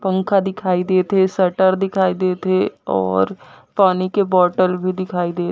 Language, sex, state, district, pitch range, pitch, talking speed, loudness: Chhattisgarhi, female, Chhattisgarh, Jashpur, 180-190 Hz, 185 Hz, 165 wpm, -18 LUFS